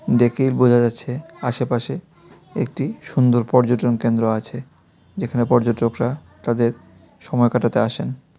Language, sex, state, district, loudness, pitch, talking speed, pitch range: Bengali, male, Tripura, West Tripura, -20 LUFS, 120 Hz, 105 wpm, 115-125 Hz